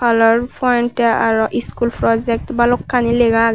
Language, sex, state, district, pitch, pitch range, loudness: Chakma, female, Tripura, West Tripura, 235 Hz, 230-240 Hz, -16 LUFS